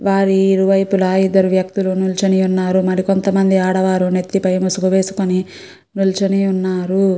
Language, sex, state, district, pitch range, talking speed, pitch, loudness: Telugu, female, Andhra Pradesh, Guntur, 185-195 Hz, 125 wpm, 190 Hz, -15 LUFS